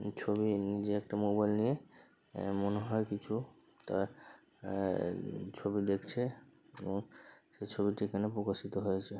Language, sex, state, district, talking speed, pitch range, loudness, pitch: Bengali, male, West Bengal, Paschim Medinipur, 145 wpm, 100-105 Hz, -36 LUFS, 105 Hz